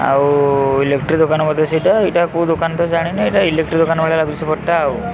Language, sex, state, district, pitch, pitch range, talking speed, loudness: Odia, male, Odisha, Khordha, 160 Hz, 155-170 Hz, 200 wpm, -15 LUFS